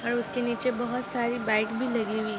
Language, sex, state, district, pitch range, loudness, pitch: Hindi, female, Jharkhand, Jamtara, 225-240 Hz, -28 LUFS, 235 Hz